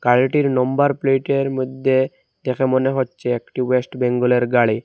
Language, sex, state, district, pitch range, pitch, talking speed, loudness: Bengali, male, Assam, Hailakandi, 125-135 Hz, 130 Hz, 110 wpm, -19 LUFS